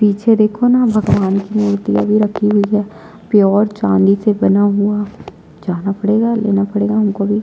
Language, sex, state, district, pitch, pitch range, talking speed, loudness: Hindi, female, Chhattisgarh, Jashpur, 205 Hz, 200-215 Hz, 170 wpm, -14 LUFS